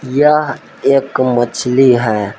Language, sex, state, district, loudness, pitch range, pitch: Hindi, male, Jharkhand, Palamu, -13 LUFS, 120-135 Hz, 130 Hz